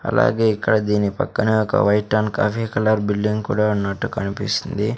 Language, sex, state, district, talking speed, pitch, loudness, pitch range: Telugu, male, Andhra Pradesh, Sri Satya Sai, 155 wpm, 105 Hz, -20 LUFS, 105-110 Hz